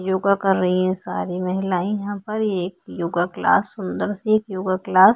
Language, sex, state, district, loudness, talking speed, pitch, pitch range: Hindi, female, Maharashtra, Chandrapur, -22 LUFS, 200 wpm, 190 Hz, 185-205 Hz